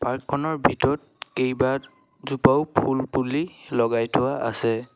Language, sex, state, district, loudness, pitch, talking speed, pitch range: Assamese, male, Assam, Sonitpur, -24 LUFS, 130 Hz, 95 wpm, 125-140 Hz